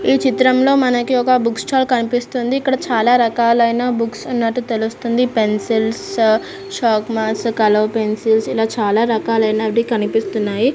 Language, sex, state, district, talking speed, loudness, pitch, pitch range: Telugu, female, Andhra Pradesh, Anantapur, 115 wpm, -16 LUFS, 230 Hz, 220-250 Hz